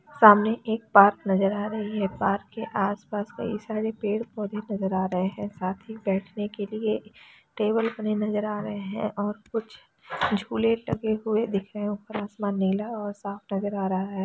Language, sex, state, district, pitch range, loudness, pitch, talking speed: Hindi, female, Chhattisgarh, Raigarh, 200-220 Hz, -26 LUFS, 210 Hz, 200 wpm